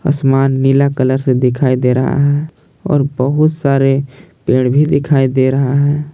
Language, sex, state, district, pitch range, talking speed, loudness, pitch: Hindi, male, Jharkhand, Palamu, 130-145 Hz, 165 wpm, -13 LUFS, 135 Hz